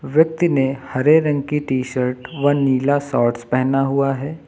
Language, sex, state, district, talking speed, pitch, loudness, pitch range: Hindi, male, Uttar Pradesh, Lucknow, 175 wpm, 135 Hz, -18 LUFS, 130-145 Hz